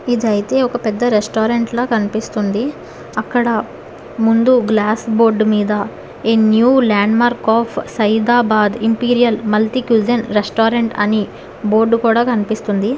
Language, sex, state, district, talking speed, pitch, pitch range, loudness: Telugu, female, Telangana, Hyderabad, 110 wpm, 225 Hz, 215-240 Hz, -15 LUFS